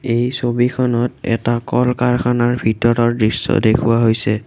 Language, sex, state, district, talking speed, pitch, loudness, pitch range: Assamese, male, Assam, Kamrup Metropolitan, 105 wpm, 120 Hz, -16 LUFS, 115-125 Hz